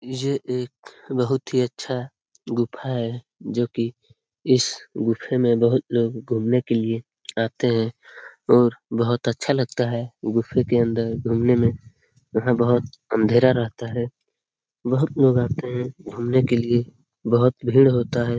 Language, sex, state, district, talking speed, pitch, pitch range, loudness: Hindi, male, Bihar, Lakhisarai, 150 wpm, 120 Hz, 115-125 Hz, -22 LUFS